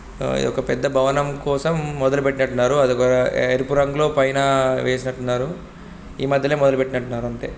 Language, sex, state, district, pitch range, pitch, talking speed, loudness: Telugu, male, Andhra Pradesh, Guntur, 125-140 Hz, 135 Hz, 140 wpm, -20 LUFS